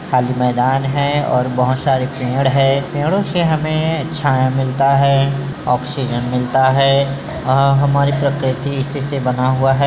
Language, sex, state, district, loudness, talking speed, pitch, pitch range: Chhattisgarhi, male, Chhattisgarh, Bilaspur, -16 LUFS, 145 wpm, 135 Hz, 130-140 Hz